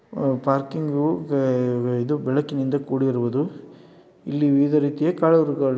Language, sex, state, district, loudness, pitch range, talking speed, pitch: Kannada, male, Karnataka, Dharwad, -22 LUFS, 130-150 Hz, 115 wpm, 140 Hz